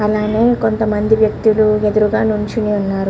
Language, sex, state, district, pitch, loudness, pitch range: Telugu, male, Andhra Pradesh, Guntur, 215 Hz, -15 LUFS, 210-220 Hz